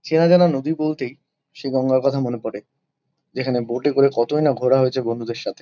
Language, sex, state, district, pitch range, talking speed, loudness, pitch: Bengali, male, West Bengal, Kolkata, 125-150 Hz, 190 wpm, -20 LUFS, 135 Hz